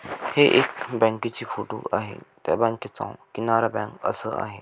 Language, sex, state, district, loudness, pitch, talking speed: Marathi, male, Maharashtra, Sindhudurg, -24 LUFS, 115 Hz, 145 wpm